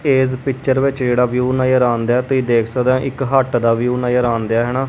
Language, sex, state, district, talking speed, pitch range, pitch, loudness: Punjabi, male, Punjab, Kapurthala, 230 wpm, 120-130 Hz, 125 Hz, -16 LUFS